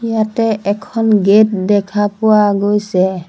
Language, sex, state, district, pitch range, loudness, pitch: Assamese, female, Assam, Sonitpur, 200-220 Hz, -13 LUFS, 205 Hz